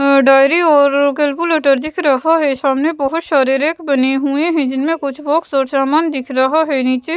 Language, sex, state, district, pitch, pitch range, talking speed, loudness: Hindi, female, Bihar, West Champaran, 280 Hz, 270-315 Hz, 200 wpm, -14 LUFS